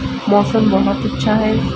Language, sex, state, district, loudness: Hindi, female, Uttar Pradesh, Ghazipur, -15 LUFS